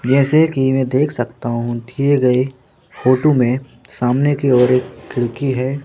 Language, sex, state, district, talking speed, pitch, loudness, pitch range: Hindi, male, Madhya Pradesh, Bhopal, 165 wpm, 130 Hz, -16 LUFS, 125-135 Hz